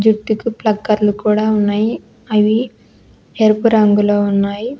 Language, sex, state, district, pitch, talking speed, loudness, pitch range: Telugu, female, Telangana, Hyderabad, 215 Hz, 100 wpm, -15 LUFS, 205-220 Hz